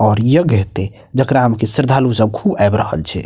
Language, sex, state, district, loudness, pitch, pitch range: Maithili, male, Bihar, Purnia, -14 LUFS, 110 Hz, 100-130 Hz